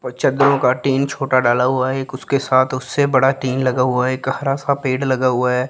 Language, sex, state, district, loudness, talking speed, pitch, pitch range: Hindi, female, Chandigarh, Chandigarh, -17 LUFS, 250 wpm, 130 Hz, 130-135 Hz